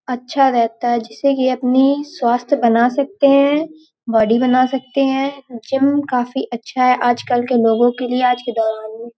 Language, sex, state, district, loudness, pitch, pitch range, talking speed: Hindi, female, Uttar Pradesh, Hamirpur, -16 LUFS, 250 Hz, 240-275 Hz, 175 wpm